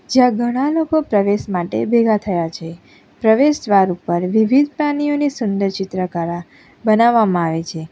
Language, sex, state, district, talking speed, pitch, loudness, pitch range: Gujarati, female, Gujarat, Valsad, 130 wpm, 210 Hz, -17 LUFS, 175-250 Hz